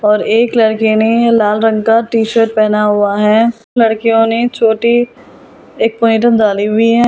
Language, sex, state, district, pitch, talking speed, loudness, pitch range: Hindi, female, Delhi, New Delhi, 225 Hz, 150 wpm, -11 LUFS, 215-230 Hz